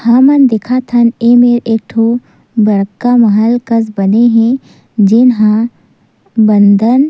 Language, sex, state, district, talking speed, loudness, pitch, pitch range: Chhattisgarhi, female, Chhattisgarh, Sukma, 125 wpm, -10 LUFS, 230 Hz, 215-240 Hz